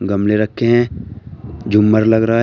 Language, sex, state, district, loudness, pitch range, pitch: Hindi, male, Uttar Pradesh, Shamli, -14 LUFS, 105-115 Hz, 110 Hz